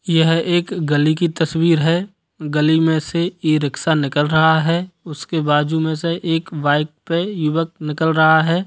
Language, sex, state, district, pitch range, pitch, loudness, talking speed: Hindi, male, Bihar, Sitamarhi, 155-170 Hz, 160 Hz, -17 LUFS, 165 wpm